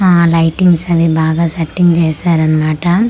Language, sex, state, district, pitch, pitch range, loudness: Telugu, female, Andhra Pradesh, Manyam, 165 Hz, 160-175 Hz, -12 LUFS